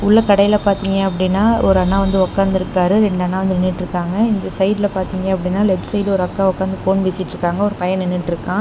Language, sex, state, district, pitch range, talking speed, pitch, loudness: Tamil, female, Tamil Nadu, Namakkal, 185-200 Hz, 180 wpm, 190 Hz, -17 LUFS